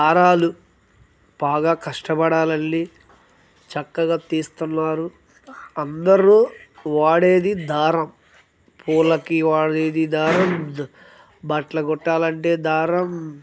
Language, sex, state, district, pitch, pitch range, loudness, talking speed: Telugu, male, Andhra Pradesh, Guntur, 160 Hz, 155-170 Hz, -19 LUFS, 70 wpm